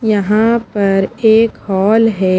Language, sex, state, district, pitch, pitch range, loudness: Hindi, female, Maharashtra, Mumbai Suburban, 215 Hz, 195-225 Hz, -13 LUFS